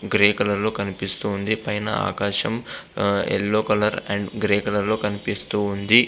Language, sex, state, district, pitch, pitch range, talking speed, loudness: Telugu, male, Andhra Pradesh, Visakhapatnam, 105 Hz, 100-110 Hz, 130 wpm, -22 LUFS